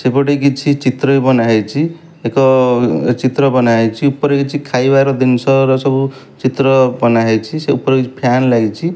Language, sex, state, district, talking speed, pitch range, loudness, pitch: Odia, male, Odisha, Malkangiri, 140 wpm, 125-140 Hz, -13 LUFS, 135 Hz